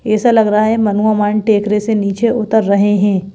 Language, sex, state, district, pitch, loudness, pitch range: Hindi, female, Madhya Pradesh, Bhopal, 215 Hz, -13 LUFS, 205-220 Hz